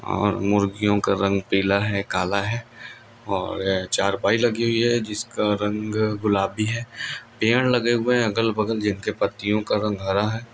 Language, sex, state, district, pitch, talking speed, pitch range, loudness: Hindi, male, Andhra Pradesh, Anantapur, 105 Hz, 120 wpm, 100-115 Hz, -23 LUFS